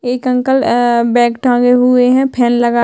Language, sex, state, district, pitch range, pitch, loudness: Hindi, female, Chhattisgarh, Sukma, 240-250 Hz, 245 Hz, -12 LUFS